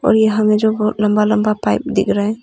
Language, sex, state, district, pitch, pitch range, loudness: Hindi, female, Arunachal Pradesh, Papum Pare, 215 Hz, 210-215 Hz, -15 LUFS